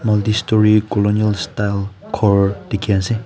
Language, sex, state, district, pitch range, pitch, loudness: Nagamese, male, Nagaland, Kohima, 100-110 Hz, 105 Hz, -17 LUFS